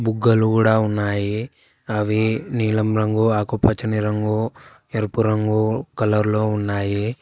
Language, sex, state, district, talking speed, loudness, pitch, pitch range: Telugu, female, Telangana, Hyderabad, 110 wpm, -20 LUFS, 110 Hz, 105-110 Hz